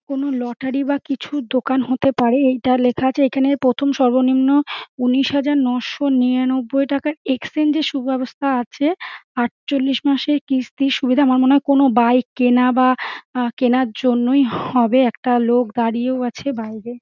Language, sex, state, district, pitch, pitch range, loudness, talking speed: Bengali, female, West Bengal, Dakshin Dinajpur, 260 Hz, 250-275 Hz, -18 LUFS, 150 wpm